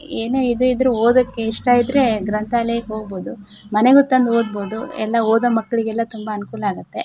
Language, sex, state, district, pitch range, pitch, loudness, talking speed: Kannada, female, Karnataka, Shimoga, 215-245 Hz, 230 Hz, -18 LUFS, 155 wpm